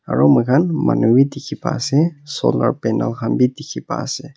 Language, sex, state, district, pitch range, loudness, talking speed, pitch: Nagamese, male, Nagaland, Kohima, 120-150 Hz, -17 LUFS, 190 wpm, 140 Hz